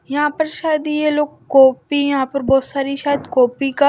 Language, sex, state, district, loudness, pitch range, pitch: Hindi, male, Maharashtra, Washim, -17 LUFS, 270-295 Hz, 285 Hz